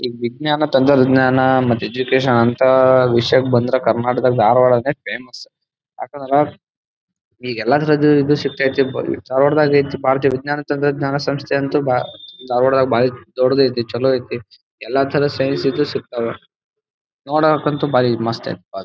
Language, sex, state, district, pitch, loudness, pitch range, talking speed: Kannada, male, Karnataka, Dharwad, 130 Hz, -16 LUFS, 125-145 Hz, 145 wpm